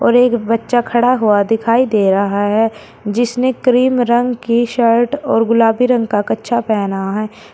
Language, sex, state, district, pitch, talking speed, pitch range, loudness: Hindi, female, Uttar Pradesh, Shamli, 230 Hz, 165 wpm, 215-245 Hz, -14 LUFS